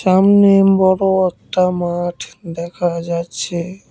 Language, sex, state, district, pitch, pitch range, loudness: Bengali, male, West Bengal, Cooch Behar, 180 Hz, 170-190 Hz, -15 LUFS